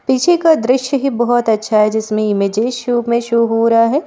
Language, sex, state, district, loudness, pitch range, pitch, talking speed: Hindi, female, Uttarakhand, Tehri Garhwal, -14 LUFS, 220-260 Hz, 235 Hz, 220 wpm